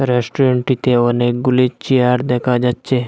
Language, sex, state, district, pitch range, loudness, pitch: Bengali, male, Assam, Hailakandi, 120-130 Hz, -15 LUFS, 125 Hz